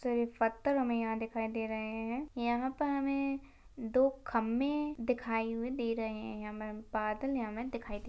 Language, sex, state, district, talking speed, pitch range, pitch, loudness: Hindi, female, Maharashtra, Sindhudurg, 185 wpm, 225-265 Hz, 235 Hz, -35 LUFS